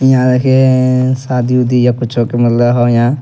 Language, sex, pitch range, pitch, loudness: Angika, male, 120-130 Hz, 125 Hz, -11 LUFS